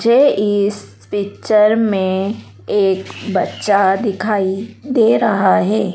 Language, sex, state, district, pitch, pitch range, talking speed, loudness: Hindi, female, Madhya Pradesh, Dhar, 205 Hz, 190-215 Hz, 100 wpm, -16 LUFS